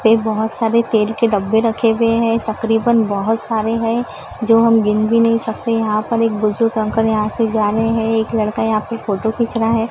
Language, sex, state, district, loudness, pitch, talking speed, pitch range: Hindi, female, Maharashtra, Gondia, -16 LUFS, 225 Hz, 225 wpm, 215-230 Hz